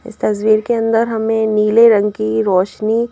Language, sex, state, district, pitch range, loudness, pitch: Hindi, female, Madhya Pradesh, Bhopal, 210-225 Hz, -14 LUFS, 220 Hz